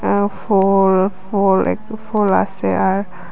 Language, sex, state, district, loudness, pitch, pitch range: Bengali, female, Tripura, West Tripura, -17 LUFS, 195 Hz, 190-205 Hz